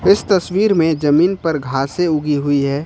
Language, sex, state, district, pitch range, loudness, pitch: Hindi, male, Jharkhand, Ranchi, 145-180 Hz, -16 LUFS, 160 Hz